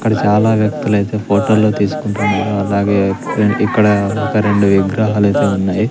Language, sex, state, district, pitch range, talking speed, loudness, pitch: Telugu, male, Andhra Pradesh, Sri Satya Sai, 100-105 Hz, 120 wpm, -14 LUFS, 105 Hz